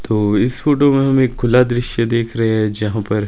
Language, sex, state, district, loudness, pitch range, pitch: Hindi, male, Himachal Pradesh, Shimla, -16 LUFS, 110-130 Hz, 115 Hz